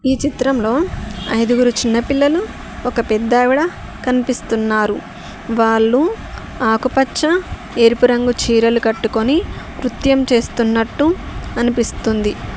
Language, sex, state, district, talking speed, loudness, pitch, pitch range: Telugu, female, Telangana, Mahabubabad, 85 wpm, -16 LUFS, 245 Hz, 225-270 Hz